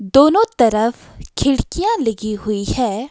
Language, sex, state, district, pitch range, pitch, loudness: Hindi, female, Himachal Pradesh, Shimla, 215-290 Hz, 240 Hz, -17 LUFS